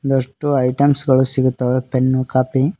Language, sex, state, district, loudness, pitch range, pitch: Kannada, male, Karnataka, Koppal, -17 LUFS, 130-135 Hz, 130 Hz